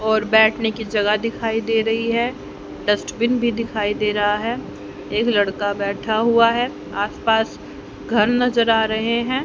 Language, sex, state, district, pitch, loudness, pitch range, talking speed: Hindi, female, Haryana, Rohtak, 220 Hz, -19 LUFS, 210-230 Hz, 165 wpm